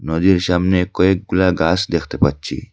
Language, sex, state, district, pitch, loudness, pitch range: Bengali, male, Assam, Hailakandi, 90 Hz, -17 LUFS, 90-95 Hz